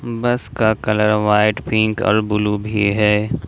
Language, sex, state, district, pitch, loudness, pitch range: Hindi, male, Jharkhand, Ranchi, 105 Hz, -17 LUFS, 105-110 Hz